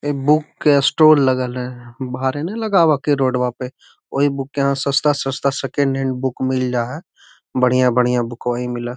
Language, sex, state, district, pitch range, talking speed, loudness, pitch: Magahi, male, Bihar, Gaya, 125-145 Hz, 185 wpm, -18 LUFS, 135 Hz